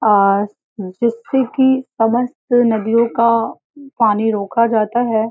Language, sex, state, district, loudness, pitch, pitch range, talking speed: Hindi, female, Uttar Pradesh, Varanasi, -16 LUFS, 230 Hz, 220-245 Hz, 115 wpm